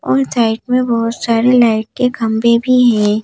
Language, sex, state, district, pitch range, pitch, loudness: Hindi, female, Madhya Pradesh, Bhopal, 225-250 Hz, 235 Hz, -13 LUFS